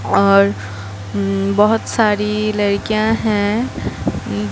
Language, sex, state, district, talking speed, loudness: Hindi, female, Bihar, Katihar, 80 wpm, -17 LUFS